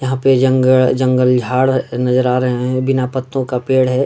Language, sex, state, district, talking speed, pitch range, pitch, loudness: Hindi, male, Bihar, Darbhanga, 205 wpm, 125-130 Hz, 130 Hz, -15 LUFS